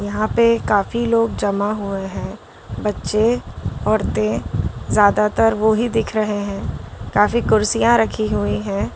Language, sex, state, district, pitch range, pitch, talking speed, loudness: Hindi, female, Gujarat, Valsad, 200-225 Hz, 210 Hz, 135 wpm, -19 LUFS